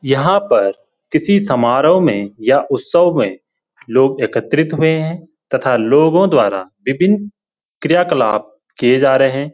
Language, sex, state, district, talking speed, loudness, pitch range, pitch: Hindi, male, Uttarakhand, Uttarkashi, 140 wpm, -14 LUFS, 130-175 Hz, 155 Hz